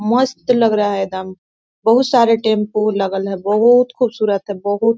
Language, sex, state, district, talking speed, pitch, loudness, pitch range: Hindi, female, Chhattisgarh, Korba, 170 wpm, 215 Hz, -16 LUFS, 200-235 Hz